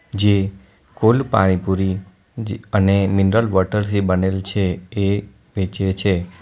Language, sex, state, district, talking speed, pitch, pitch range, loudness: Gujarati, male, Gujarat, Valsad, 120 wpm, 95 Hz, 95-100 Hz, -19 LUFS